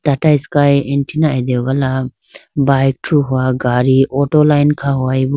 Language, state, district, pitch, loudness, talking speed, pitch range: Idu Mishmi, Arunachal Pradesh, Lower Dibang Valley, 140 Hz, -14 LUFS, 100 wpm, 130-145 Hz